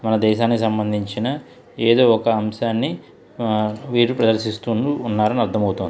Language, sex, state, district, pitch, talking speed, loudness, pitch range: Telugu, male, Andhra Pradesh, Krishna, 110 Hz, 90 wpm, -19 LUFS, 110-115 Hz